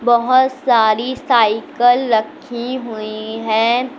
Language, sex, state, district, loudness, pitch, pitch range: Hindi, female, Uttar Pradesh, Lucknow, -16 LUFS, 240 Hz, 220-255 Hz